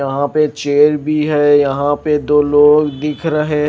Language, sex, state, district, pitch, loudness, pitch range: Hindi, male, Himachal Pradesh, Shimla, 150 Hz, -13 LUFS, 145-150 Hz